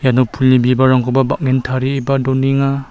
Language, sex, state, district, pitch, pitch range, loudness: Garo, male, Meghalaya, South Garo Hills, 130 Hz, 130-135 Hz, -14 LUFS